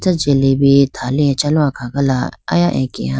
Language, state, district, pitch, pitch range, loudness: Idu Mishmi, Arunachal Pradesh, Lower Dibang Valley, 140 Hz, 130-145 Hz, -15 LUFS